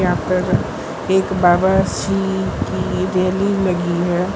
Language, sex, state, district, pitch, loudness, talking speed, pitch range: Hindi, female, Gujarat, Valsad, 190 Hz, -18 LUFS, 85 wpm, 180-190 Hz